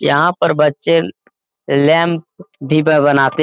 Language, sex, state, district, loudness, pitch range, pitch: Hindi, male, Bihar, Lakhisarai, -14 LUFS, 145-165 Hz, 155 Hz